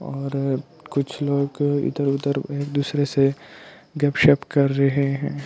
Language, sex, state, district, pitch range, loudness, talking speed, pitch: Hindi, male, Delhi, New Delhi, 140-145 Hz, -22 LUFS, 145 wpm, 140 Hz